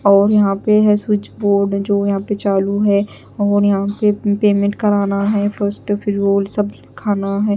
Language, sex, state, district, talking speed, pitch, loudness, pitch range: Hindi, female, Punjab, Pathankot, 180 wpm, 205 Hz, -16 LUFS, 200-205 Hz